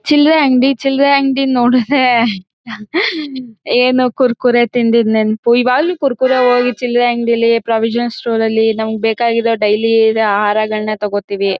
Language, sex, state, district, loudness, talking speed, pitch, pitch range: Kannada, female, Karnataka, Mysore, -13 LUFS, 120 wpm, 240 Hz, 220-255 Hz